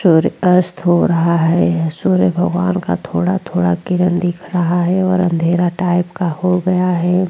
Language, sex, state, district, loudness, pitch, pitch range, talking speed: Hindi, female, Goa, North and South Goa, -15 LUFS, 175 Hz, 160-180 Hz, 165 wpm